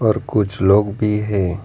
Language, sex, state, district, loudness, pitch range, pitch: Hindi, male, Arunachal Pradesh, Lower Dibang Valley, -18 LUFS, 100-105 Hz, 105 Hz